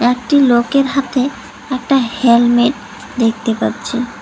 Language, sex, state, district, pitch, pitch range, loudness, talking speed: Bengali, female, West Bengal, Cooch Behar, 245 Hz, 235-270 Hz, -14 LUFS, 100 wpm